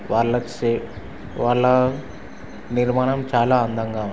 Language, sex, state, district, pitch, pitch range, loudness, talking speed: Telugu, male, Andhra Pradesh, Srikakulam, 120 Hz, 110-125 Hz, -21 LUFS, 100 wpm